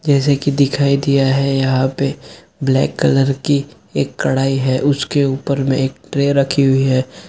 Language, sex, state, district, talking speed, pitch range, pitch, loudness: Hindi, male, Jharkhand, Sahebganj, 180 wpm, 135-140 Hz, 140 Hz, -16 LUFS